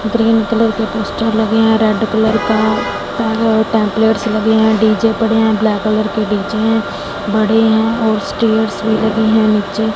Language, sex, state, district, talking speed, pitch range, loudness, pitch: Hindi, female, Punjab, Fazilka, 170 wpm, 215-225 Hz, -14 LUFS, 220 Hz